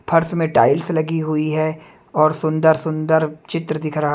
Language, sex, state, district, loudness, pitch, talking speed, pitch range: Hindi, male, Chhattisgarh, Raipur, -19 LUFS, 155 Hz, 175 wpm, 155-160 Hz